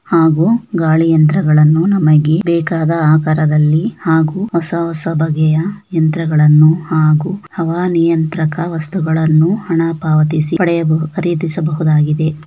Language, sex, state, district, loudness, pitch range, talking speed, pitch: Kannada, female, Karnataka, Shimoga, -13 LUFS, 155-170 Hz, 85 wpm, 160 Hz